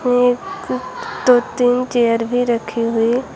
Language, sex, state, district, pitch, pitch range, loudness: Hindi, female, Uttar Pradesh, Shamli, 245 Hz, 235-255 Hz, -17 LUFS